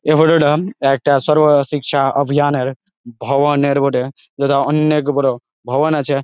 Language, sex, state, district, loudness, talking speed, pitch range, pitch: Bengali, male, West Bengal, Jalpaiguri, -15 LUFS, 135 wpm, 135-150 Hz, 140 Hz